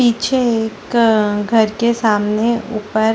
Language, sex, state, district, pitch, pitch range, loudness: Hindi, female, Chhattisgarh, Sarguja, 225 Hz, 215-235 Hz, -16 LUFS